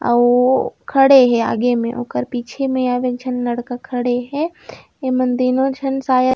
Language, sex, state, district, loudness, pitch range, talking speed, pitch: Chhattisgarhi, female, Chhattisgarh, Raigarh, -17 LUFS, 245-265 Hz, 160 wpm, 250 Hz